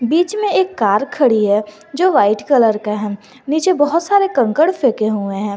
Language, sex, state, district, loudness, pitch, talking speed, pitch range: Hindi, male, Jharkhand, Garhwa, -15 LUFS, 255 Hz, 195 wpm, 210-330 Hz